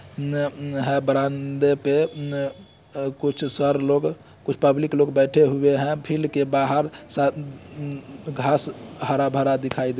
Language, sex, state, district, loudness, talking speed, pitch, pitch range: Hindi, male, Bihar, Muzaffarpur, -22 LUFS, 120 wpm, 140 Hz, 135-145 Hz